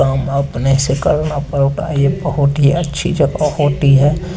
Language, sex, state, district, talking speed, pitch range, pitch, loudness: Hindi, male, Chandigarh, Chandigarh, 125 wpm, 140-150 Hz, 145 Hz, -15 LUFS